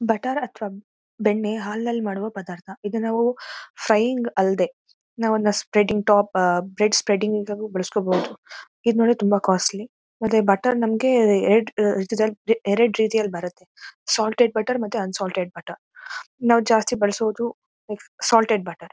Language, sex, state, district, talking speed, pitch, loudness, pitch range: Kannada, female, Karnataka, Mysore, 130 wpm, 215 Hz, -21 LUFS, 200-230 Hz